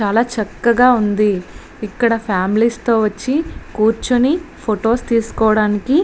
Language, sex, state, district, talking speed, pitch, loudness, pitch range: Telugu, female, Andhra Pradesh, Visakhapatnam, 110 wpm, 225 Hz, -16 LUFS, 210-245 Hz